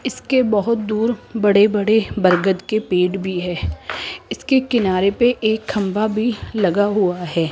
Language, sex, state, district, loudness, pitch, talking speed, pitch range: Hindi, male, Rajasthan, Jaipur, -18 LUFS, 205 Hz, 150 wpm, 185-225 Hz